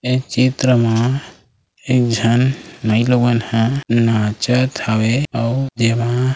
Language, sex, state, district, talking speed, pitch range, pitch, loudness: Chhattisgarhi, male, Chhattisgarh, Raigarh, 115 wpm, 115-130 Hz, 120 Hz, -17 LUFS